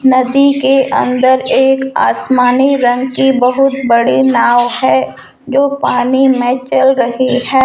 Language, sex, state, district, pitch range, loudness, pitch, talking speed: Hindi, female, Rajasthan, Jaipur, 245-270 Hz, -11 LUFS, 260 Hz, 140 wpm